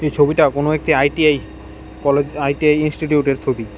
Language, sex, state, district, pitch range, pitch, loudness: Bengali, male, Tripura, West Tripura, 135-150 Hz, 145 Hz, -17 LUFS